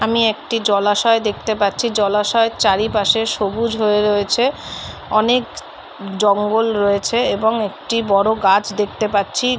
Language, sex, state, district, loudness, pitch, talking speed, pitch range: Bengali, female, West Bengal, North 24 Parganas, -17 LUFS, 215 Hz, 120 wpm, 205-230 Hz